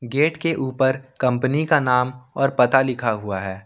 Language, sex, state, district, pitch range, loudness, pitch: Hindi, male, Jharkhand, Ranchi, 125-135 Hz, -20 LUFS, 130 Hz